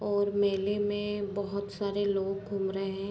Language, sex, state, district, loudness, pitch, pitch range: Hindi, female, Bihar, Muzaffarpur, -31 LUFS, 200 Hz, 195-205 Hz